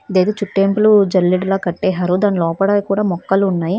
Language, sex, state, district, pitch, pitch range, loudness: Telugu, female, Telangana, Hyderabad, 195 Hz, 180-205 Hz, -15 LUFS